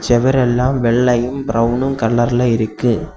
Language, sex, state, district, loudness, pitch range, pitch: Tamil, male, Tamil Nadu, Kanyakumari, -15 LUFS, 115-130 Hz, 120 Hz